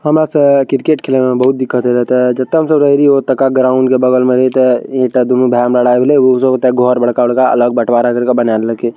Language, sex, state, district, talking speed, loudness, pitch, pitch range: Maithili, male, Bihar, Araria, 215 wpm, -11 LUFS, 125 Hz, 125-135 Hz